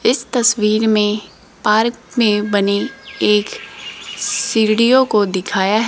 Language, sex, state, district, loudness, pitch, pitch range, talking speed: Hindi, female, Rajasthan, Jaipur, -16 LUFS, 215 Hz, 205-235 Hz, 110 wpm